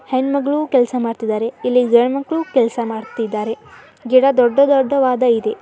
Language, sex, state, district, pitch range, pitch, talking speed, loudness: Kannada, male, Karnataka, Dharwad, 230-275 Hz, 250 Hz, 140 wpm, -16 LUFS